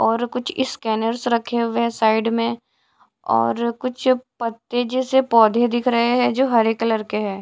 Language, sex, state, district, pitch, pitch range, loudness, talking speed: Hindi, female, Odisha, Sambalpur, 235 Hz, 225-245 Hz, -20 LUFS, 170 wpm